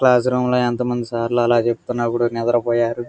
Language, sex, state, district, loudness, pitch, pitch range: Telugu, male, Andhra Pradesh, Guntur, -19 LUFS, 120 Hz, 120-125 Hz